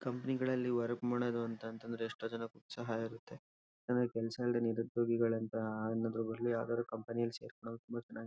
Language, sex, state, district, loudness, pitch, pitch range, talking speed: Kannada, male, Karnataka, Shimoga, -38 LUFS, 115 Hz, 115-120 Hz, 165 wpm